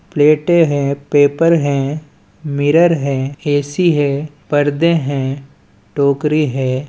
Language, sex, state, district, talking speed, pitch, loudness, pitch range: Chhattisgarhi, male, Chhattisgarh, Balrampur, 105 wpm, 145 Hz, -15 LUFS, 140-155 Hz